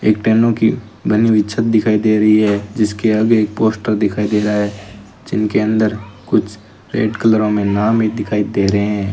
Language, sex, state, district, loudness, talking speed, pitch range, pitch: Hindi, male, Rajasthan, Bikaner, -15 LUFS, 195 wpm, 105-110 Hz, 105 Hz